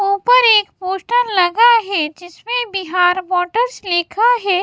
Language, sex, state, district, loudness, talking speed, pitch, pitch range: Hindi, female, Bihar, West Champaran, -15 LUFS, 130 wpm, 395 Hz, 360-475 Hz